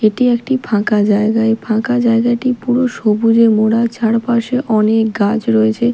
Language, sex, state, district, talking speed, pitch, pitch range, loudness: Bengali, female, Odisha, Malkangiri, 140 wpm, 225 Hz, 215-240 Hz, -14 LUFS